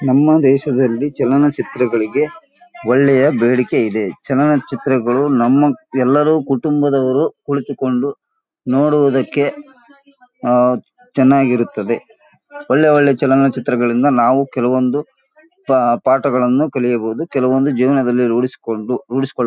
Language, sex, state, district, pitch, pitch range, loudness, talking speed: Kannada, male, Karnataka, Gulbarga, 135 Hz, 125-150 Hz, -15 LUFS, 80 wpm